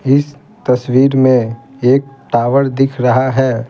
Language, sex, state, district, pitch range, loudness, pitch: Hindi, male, Bihar, Patna, 125-135 Hz, -13 LUFS, 130 Hz